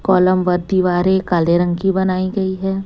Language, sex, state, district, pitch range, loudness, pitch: Hindi, female, Chhattisgarh, Raipur, 180-190 Hz, -16 LUFS, 185 Hz